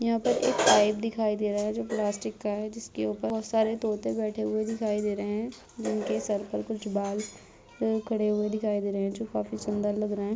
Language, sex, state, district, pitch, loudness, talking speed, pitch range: Hindi, female, Uttar Pradesh, Muzaffarnagar, 210 Hz, -29 LUFS, 230 wpm, 200-220 Hz